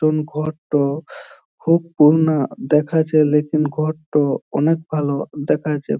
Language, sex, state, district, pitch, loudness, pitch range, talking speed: Bengali, male, West Bengal, Jhargram, 155 Hz, -18 LUFS, 150-155 Hz, 140 wpm